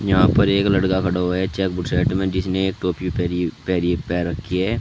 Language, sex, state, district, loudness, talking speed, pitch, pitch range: Hindi, male, Uttar Pradesh, Shamli, -20 LUFS, 235 wpm, 95 Hz, 90-95 Hz